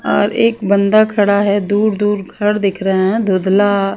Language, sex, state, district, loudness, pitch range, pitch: Hindi, female, Punjab, Pathankot, -14 LUFS, 195-210 Hz, 205 Hz